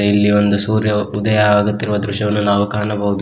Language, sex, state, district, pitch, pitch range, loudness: Kannada, male, Karnataka, Koppal, 105 Hz, 100-105 Hz, -15 LUFS